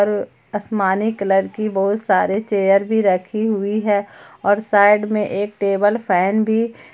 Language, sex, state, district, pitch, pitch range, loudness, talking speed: Hindi, female, Jharkhand, Palamu, 205 Hz, 195-215 Hz, -18 LUFS, 145 wpm